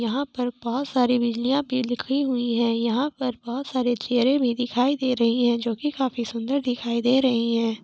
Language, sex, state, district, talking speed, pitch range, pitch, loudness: Hindi, female, Jharkhand, Jamtara, 220 wpm, 235-260 Hz, 245 Hz, -24 LUFS